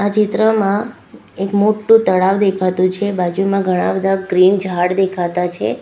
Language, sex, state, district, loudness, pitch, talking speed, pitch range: Gujarati, female, Gujarat, Valsad, -15 LUFS, 195 Hz, 145 wpm, 185-205 Hz